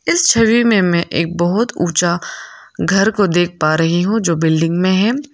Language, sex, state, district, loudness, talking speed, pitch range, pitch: Hindi, female, Arunachal Pradesh, Lower Dibang Valley, -15 LUFS, 180 wpm, 170-225 Hz, 180 Hz